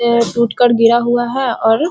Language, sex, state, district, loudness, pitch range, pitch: Hindi, female, Bihar, Muzaffarpur, -13 LUFS, 235-245 Hz, 235 Hz